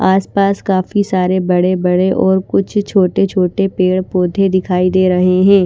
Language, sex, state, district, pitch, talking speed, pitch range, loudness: Hindi, female, Bihar, Patna, 185 Hz, 170 wpm, 185-195 Hz, -14 LUFS